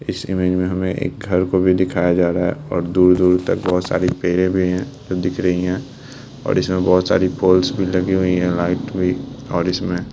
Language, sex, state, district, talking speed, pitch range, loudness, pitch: Hindi, male, Bihar, Lakhisarai, 225 wpm, 90-95 Hz, -18 LUFS, 90 Hz